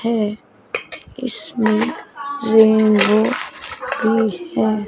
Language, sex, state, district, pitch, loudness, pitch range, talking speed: Hindi, female, Chandigarh, Chandigarh, 220 Hz, -18 LUFS, 215-230 Hz, 60 wpm